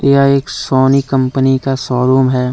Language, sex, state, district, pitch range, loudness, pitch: Hindi, male, Jharkhand, Deoghar, 130-135 Hz, -13 LUFS, 130 Hz